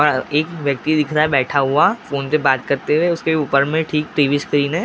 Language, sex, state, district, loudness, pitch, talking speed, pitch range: Hindi, male, Maharashtra, Gondia, -17 LUFS, 150 Hz, 235 wpm, 140-155 Hz